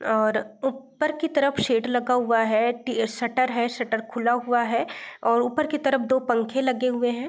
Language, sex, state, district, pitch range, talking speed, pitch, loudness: Hindi, female, Bihar, East Champaran, 235-260 Hz, 195 wpm, 245 Hz, -24 LUFS